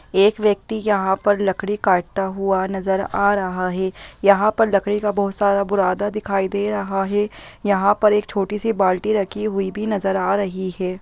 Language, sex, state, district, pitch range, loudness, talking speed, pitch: Hindi, female, Chhattisgarh, Bastar, 190-210 Hz, -20 LUFS, 190 wpm, 200 Hz